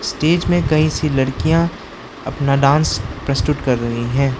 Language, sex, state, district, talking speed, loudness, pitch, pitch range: Hindi, male, Arunachal Pradesh, Lower Dibang Valley, 150 wpm, -17 LUFS, 140 Hz, 130-155 Hz